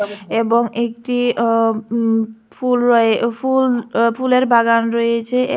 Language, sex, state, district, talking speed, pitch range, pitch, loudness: Bengali, female, Tripura, West Tripura, 120 wpm, 230-245 Hz, 235 Hz, -16 LUFS